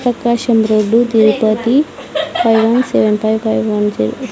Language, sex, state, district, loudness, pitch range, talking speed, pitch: Telugu, female, Andhra Pradesh, Sri Satya Sai, -13 LUFS, 215-245 Hz, 125 wpm, 225 Hz